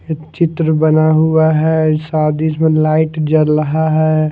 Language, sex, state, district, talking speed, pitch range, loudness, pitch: Hindi, male, Punjab, Fazilka, 165 wpm, 155-160 Hz, -13 LUFS, 155 Hz